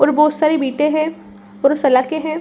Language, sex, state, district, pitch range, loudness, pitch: Hindi, female, Bihar, Saran, 270-310 Hz, -16 LUFS, 300 Hz